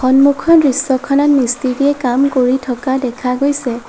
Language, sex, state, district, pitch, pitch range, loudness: Assamese, female, Assam, Sonitpur, 265 Hz, 250-280 Hz, -14 LUFS